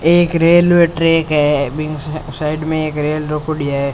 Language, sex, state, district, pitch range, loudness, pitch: Rajasthani, male, Rajasthan, Churu, 150-165 Hz, -15 LUFS, 155 Hz